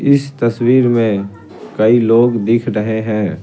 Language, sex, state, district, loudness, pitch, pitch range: Hindi, male, Bihar, Patna, -14 LUFS, 115 Hz, 110-120 Hz